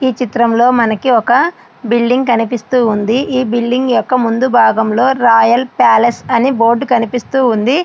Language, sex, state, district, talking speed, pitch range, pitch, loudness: Telugu, female, Andhra Pradesh, Srikakulam, 130 wpm, 230-255 Hz, 240 Hz, -12 LUFS